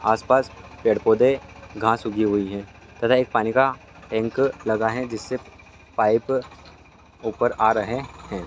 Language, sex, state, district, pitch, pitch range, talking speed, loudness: Hindi, male, Bihar, Lakhisarai, 110 Hz, 90-120 Hz, 140 wpm, -22 LUFS